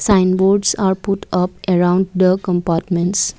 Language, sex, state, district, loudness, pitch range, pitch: English, female, Assam, Kamrup Metropolitan, -16 LUFS, 180-195 Hz, 185 Hz